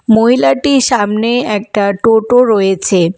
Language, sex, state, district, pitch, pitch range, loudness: Bengali, female, West Bengal, Alipurduar, 220 Hz, 200-245 Hz, -11 LUFS